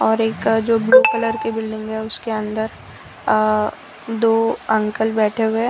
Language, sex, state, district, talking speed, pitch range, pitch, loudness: Hindi, female, Gujarat, Valsad, 170 wpm, 220-225 Hz, 220 Hz, -19 LUFS